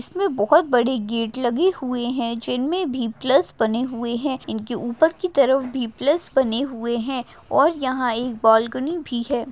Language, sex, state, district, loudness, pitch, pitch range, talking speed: Hindi, female, Maharashtra, Aurangabad, -21 LUFS, 255 Hz, 235-280 Hz, 175 wpm